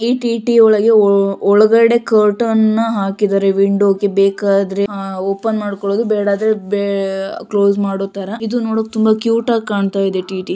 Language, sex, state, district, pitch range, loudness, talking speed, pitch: Kannada, female, Karnataka, Shimoga, 195-220 Hz, -15 LUFS, 150 wpm, 205 Hz